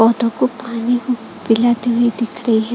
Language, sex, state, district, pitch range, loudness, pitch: Hindi, female, Chhattisgarh, Raipur, 230-245 Hz, -17 LUFS, 235 Hz